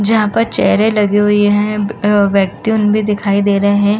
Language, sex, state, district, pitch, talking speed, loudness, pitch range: Hindi, female, Uttar Pradesh, Muzaffarnagar, 205 Hz, 210 wpm, -13 LUFS, 205-215 Hz